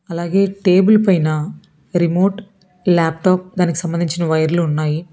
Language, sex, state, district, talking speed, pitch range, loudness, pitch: Telugu, female, Telangana, Hyderabad, 105 wpm, 165-190 Hz, -16 LUFS, 175 Hz